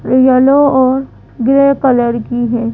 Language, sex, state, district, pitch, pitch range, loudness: Hindi, female, Madhya Pradesh, Bhopal, 255 Hz, 240-270 Hz, -11 LUFS